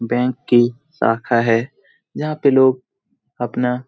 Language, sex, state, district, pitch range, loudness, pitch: Hindi, male, Bihar, Jamui, 120-130 Hz, -18 LUFS, 125 Hz